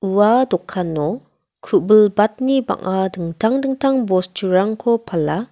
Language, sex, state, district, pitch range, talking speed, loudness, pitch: Garo, female, Meghalaya, West Garo Hills, 185-235 Hz, 85 wpm, -18 LUFS, 205 Hz